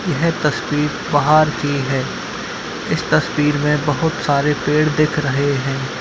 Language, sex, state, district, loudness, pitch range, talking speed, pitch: Hindi, male, Bihar, Darbhanga, -18 LUFS, 140-155 Hz, 150 wpm, 150 Hz